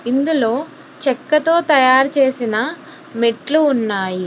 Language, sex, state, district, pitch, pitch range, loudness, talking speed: Telugu, female, Telangana, Hyderabad, 270 Hz, 235-305 Hz, -16 LUFS, 85 wpm